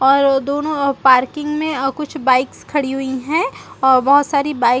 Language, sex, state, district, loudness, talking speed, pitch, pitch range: Hindi, female, Chhattisgarh, Rajnandgaon, -16 LUFS, 210 wpm, 275 Hz, 265-295 Hz